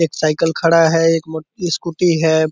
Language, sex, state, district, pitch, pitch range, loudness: Hindi, male, Bihar, Purnia, 165 Hz, 160-165 Hz, -16 LUFS